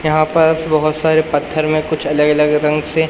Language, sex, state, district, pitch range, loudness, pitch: Hindi, male, Madhya Pradesh, Umaria, 150-160 Hz, -15 LUFS, 155 Hz